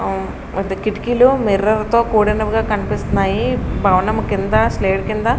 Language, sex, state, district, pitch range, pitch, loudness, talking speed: Telugu, female, Andhra Pradesh, Srikakulam, 195-230 Hz, 215 Hz, -17 LUFS, 110 wpm